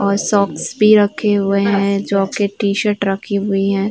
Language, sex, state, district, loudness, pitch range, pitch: Hindi, female, Uttar Pradesh, Varanasi, -16 LUFS, 200-205 Hz, 200 Hz